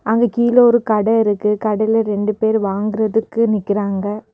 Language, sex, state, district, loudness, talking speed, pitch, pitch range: Tamil, female, Tamil Nadu, Kanyakumari, -16 LUFS, 140 wpm, 215 Hz, 210-225 Hz